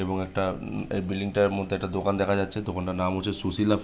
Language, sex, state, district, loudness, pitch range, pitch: Bengali, male, West Bengal, Jhargram, -27 LUFS, 95-100 Hz, 95 Hz